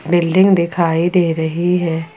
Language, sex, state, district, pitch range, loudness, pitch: Hindi, female, Jharkhand, Ranchi, 165-180 Hz, -15 LUFS, 170 Hz